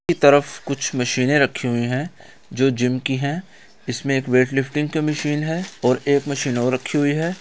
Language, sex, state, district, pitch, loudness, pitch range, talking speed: Hindi, male, Bihar, Gaya, 140 Hz, -20 LUFS, 130-150 Hz, 200 wpm